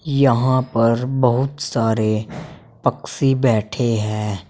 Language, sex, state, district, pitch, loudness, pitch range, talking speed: Hindi, male, Uttar Pradesh, Saharanpur, 120 Hz, -19 LUFS, 110-130 Hz, 95 wpm